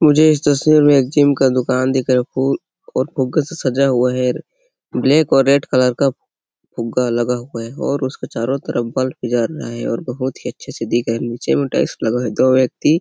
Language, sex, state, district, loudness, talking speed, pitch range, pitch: Hindi, male, Chhattisgarh, Sarguja, -17 LUFS, 240 wpm, 125-145 Hz, 130 Hz